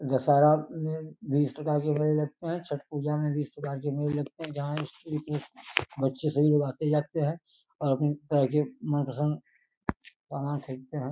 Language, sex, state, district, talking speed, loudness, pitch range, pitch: Hindi, male, Uttar Pradesh, Gorakhpur, 165 wpm, -29 LUFS, 145-150 Hz, 150 Hz